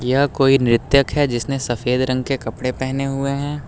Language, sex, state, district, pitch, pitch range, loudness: Hindi, male, Uttar Pradesh, Lucknow, 135 Hz, 125-140 Hz, -19 LUFS